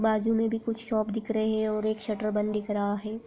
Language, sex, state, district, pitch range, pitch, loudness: Hindi, female, Bihar, Purnia, 215-225 Hz, 215 Hz, -29 LUFS